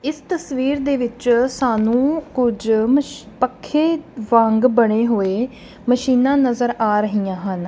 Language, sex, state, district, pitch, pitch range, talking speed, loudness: Punjabi, female, Punjab, Kapurthala, 245 Hz, 220-265 Hz, 125 wpm, -18 LUFS